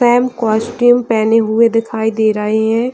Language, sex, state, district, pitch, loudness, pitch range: Hindi, female, Bihar, Jahanabad, 225 Hz, -13 LUFS, 220-240 Hz